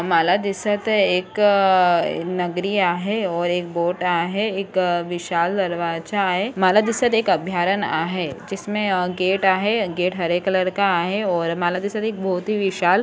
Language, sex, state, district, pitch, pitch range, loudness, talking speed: Marathi, female, Maharashtra, Sindhudurg, 185 Hz, 175-200 Hz, -20 LUFS, 155 wpm